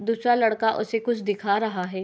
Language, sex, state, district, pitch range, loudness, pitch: Hindi, female, Bihar, Begusarai, 205-230 Hz, -24 LUFS, 220 Hz